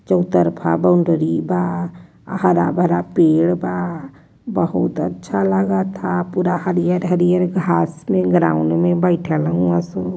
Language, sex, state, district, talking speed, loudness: Hindi, female, Uttar Pradesh, Varanasi, 135 wpm, -18 LUFS